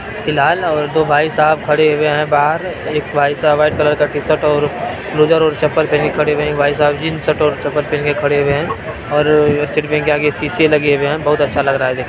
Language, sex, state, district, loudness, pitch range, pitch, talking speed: Maithili, male, Bihar, Araria, -14 LUFS, 145-155 Hz, 150 Hz, 230 wpm